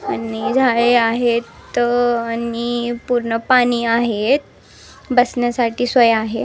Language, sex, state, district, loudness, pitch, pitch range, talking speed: Marathi, female, Maharashtra, Nagpur, -17 LUFS, 240 Hz, 230-245 Hz, 85 wpm